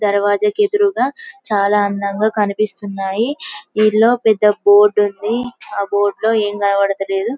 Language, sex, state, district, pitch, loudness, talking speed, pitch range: Telugu, female, Telangana, Karimnagar, 210 Hz, -16 LUFS, 120 wpm, 200-235 Hz